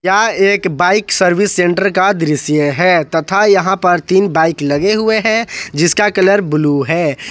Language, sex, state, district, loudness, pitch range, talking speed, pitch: Hindi, male, Jharkhand, Ranchi, -13 LUFS, 160-200 Hz, 165 wpm, 185 Hz